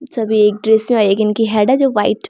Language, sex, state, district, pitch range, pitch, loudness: Hindi, female, Bihar, Samastipur, 210-235 Hz, 220 Hz, -14 LUFS